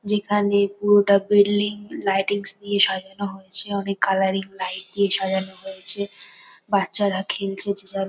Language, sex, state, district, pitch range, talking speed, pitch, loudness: Bengali, female, West Bengal, North 24 Parganas, 190-205 Hz, 125 wpm, 200 Hz, -21 LUFS